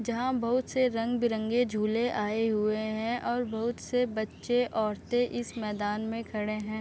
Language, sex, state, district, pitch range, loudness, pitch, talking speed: Hindi, female, Uttar Pradesh, Deoria, 215-245 Hz, -30 LUFS, 230 Hz, 165 wpm